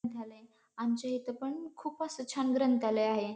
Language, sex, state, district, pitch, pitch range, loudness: Marathi, female, Maharashtra, Pune, 245 Hz, 225-265 Hz, -33 LUFS